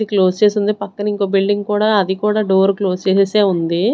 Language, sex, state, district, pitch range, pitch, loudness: Telugu, female, Andhra Pradesh, Sri Satya Sai, 190-210 Hz, 200 Hz, -16 LUFS